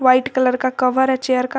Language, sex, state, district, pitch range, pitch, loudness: Hindi, female, Jharkhand, Garhwa, 255-260 Hz, 255 Hz, -17 LUFS